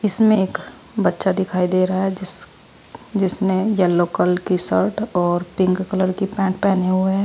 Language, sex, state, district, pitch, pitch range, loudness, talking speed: Hindi, female, Uttar Pradesh, Saharanpur, 190 Hz, 185-195 Hz, -18 LUFS, 175 wpm